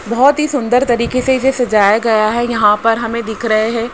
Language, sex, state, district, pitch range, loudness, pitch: Hindi, female, Haryana, Rohtak, 220-250 Hz, -13 LUFS, 235 Hz